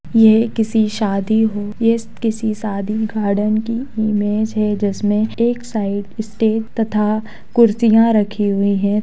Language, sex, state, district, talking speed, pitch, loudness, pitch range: Hindi, female, Bihar, East Champaran, 140 wpm, 215 Hz, -17 LUFS, 210-225 Hz